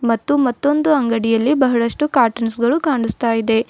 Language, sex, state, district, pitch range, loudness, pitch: Kannada, female, Karnataka, Bidar, 230-285 Hz, -17 LUFS, 240 Hz